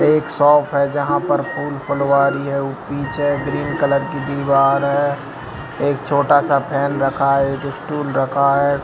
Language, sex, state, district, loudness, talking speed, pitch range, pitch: Hindi, male, Bihar, Lakhisarai, -18 LUFS, 165 wpm, 140-145 Hz, 140 Hz